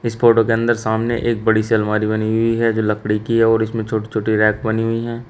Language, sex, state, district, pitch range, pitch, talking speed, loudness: Hindi, male, Uttar Pradesh, Shamli, 110-115 Hz, 110 Hz, 260 wpm, -17 LUFS